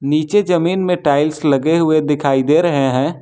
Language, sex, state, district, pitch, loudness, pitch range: Hindi, male, Jharkhand, Ranchi, 150 Hz, -15 LUFS, 140-170 Hz